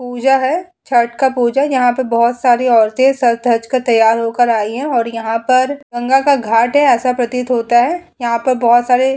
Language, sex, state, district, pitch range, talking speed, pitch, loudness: Hindi, female, Uttar Pradesh, Muzaffarnagar, 235-265 Hz, 210 wpm, 245 Hz, -14 LUFS